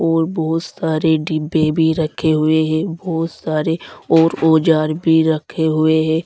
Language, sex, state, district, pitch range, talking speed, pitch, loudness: Hindi, male, Uttar Pradesh, Saharanpur, 155-165 Hz, 155 wpm, 160 Hz, -17 LUFS